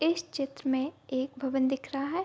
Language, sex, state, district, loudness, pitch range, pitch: Hindi, female, Bihar, Kishanganj, -31 LUFS, 265-305 Hz, 275 Hz